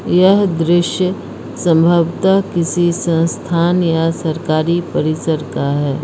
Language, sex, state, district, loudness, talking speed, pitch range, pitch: Hindi, female, Uttar Pradesh, Lucknow, -15 LUFS, 100 wpm, 160-180 Hz, 170 Hz